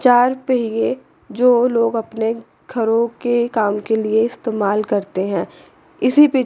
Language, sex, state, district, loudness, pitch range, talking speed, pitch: Hindi, female, Chandigarh, Chandigarh, -18 LUFS, 220-245 Hz, 140 wpm, 230 Hz